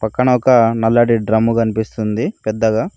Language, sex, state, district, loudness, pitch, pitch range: Telugu, male, Telangana, Mahabubabad, -15 LUFS, 115 Hz, 110-115 Hz